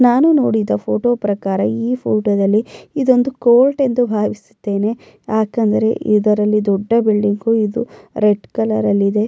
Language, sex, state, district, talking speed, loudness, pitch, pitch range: Kannada, female, Karnataka, Mysore, 115 wpm, -16 LUFS, 215 Hz, 210-235 Hz